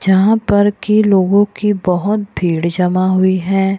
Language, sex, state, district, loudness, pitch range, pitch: Hindi, female, Bihar, Purnia, -14 LUFS, 185-205 Hz, 195 Hz